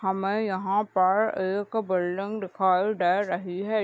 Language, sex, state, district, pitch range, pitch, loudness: Hindi, female, Uttar Pradesh, Deoria, 185-205 Hz, 190 Hz, -26 LUFS